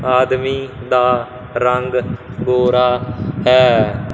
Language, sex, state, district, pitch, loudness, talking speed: Punjabi, male, Punjab, Fazilka, 125 Hz, -16 LUFS, 70 wpm